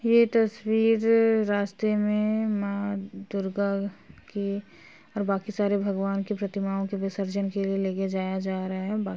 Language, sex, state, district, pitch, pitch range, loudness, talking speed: Hindi, female, Uttar Pradesh, Jalaun, 200 Hz, 195-215 Hz, -27 LUFS, 155 wpm